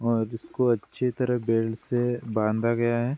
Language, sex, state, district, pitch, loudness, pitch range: Hindi, male, Bihar, Bhagalpur, 120 Hz, -26 LUFS, 115-120 Hz